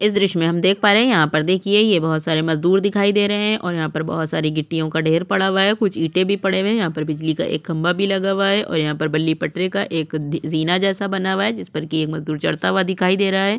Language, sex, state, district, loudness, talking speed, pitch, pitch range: Hindi, female, Chhattisgarh, Sukma, -19 LUFS, 310 wpm, 180 Hz, 160-200 Hz